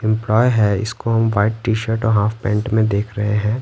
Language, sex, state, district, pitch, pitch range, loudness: Hindi, male, Bihar, West Champaran, 110 Hz, 105-115 Hz, -18 LUFS